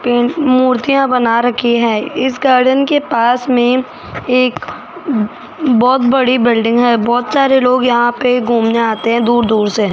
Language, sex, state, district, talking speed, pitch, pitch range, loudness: Hindi, female, Rajasthan, Jaipur, 155 wpm, 245 Hz, 235-255 Hz, -13 LUFS